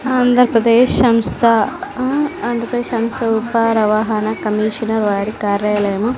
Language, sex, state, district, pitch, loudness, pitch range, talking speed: Telugu, female, Andhra Pradesh, Sri Satya Sai, 230 Hz, -16 LUFS, 215-245 Hz, 95 wpm